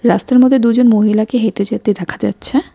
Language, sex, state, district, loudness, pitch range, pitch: Bengali, female, West Bengal, Cooch Behar, -13 LUFS, 210-245 Hz, 230 Hz